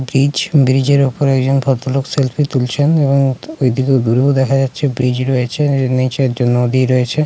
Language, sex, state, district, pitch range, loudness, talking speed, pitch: Bengali, male, West Bengal, Kolkata, 130-140 Hz, -14 LUFS, 150 wpm, 135 Hz